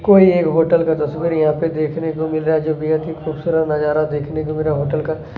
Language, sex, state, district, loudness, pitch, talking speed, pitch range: Hindi, male, Chhattisgarh, Kabirdham, -18 LUFS, 155 Hz, 255 wpm, 155-160 Hz